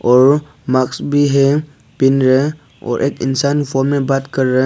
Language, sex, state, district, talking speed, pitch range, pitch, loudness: Hindi, male, Arunachal Pradesh, Papum Pare, 180 wpm, 130-145 Hz, 135 Hz, -15 LUFS